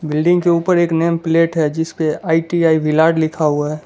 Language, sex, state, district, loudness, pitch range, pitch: Hindi, male, Gujarat, Valsad, -16 LUFS, 155-165 Hz, 160 Hz